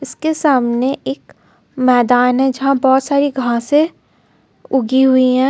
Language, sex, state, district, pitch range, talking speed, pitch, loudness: Hindi, female, Jharkhand, Ranchi, 255-280 Hz, 130 wpm, 265 Hz, -15 LUFS